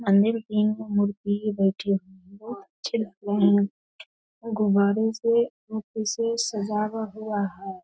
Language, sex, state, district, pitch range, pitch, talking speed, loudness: Hindi, female, Bihar, Darbhanga, 200-220 Hz, 210 Hz, 160 wpm, -25 LUFS